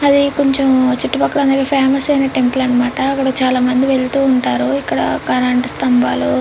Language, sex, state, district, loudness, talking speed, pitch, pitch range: Telugu, female, Andhra Pradesh, Chittoor, -14 LUFS, 160 wpm, 260 Hz, 250-275 Hz